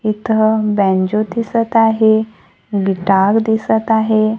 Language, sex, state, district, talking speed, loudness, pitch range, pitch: Marathi, female, Maharashtra, Gondia, 95 wpm, -15 LUFS, 210-220 Hz, 220 Hz